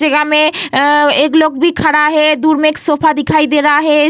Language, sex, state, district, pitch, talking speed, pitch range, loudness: Hindi, female, Bihar, Vaishali, 300 Hz, 250 wpm, 295-310 Hz, -11 LUFS